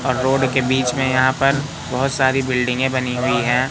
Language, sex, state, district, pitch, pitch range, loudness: Hindi, male, Madhya Pradesh, Katni, 130 Hz, 125-135 Hz, -18 LUFS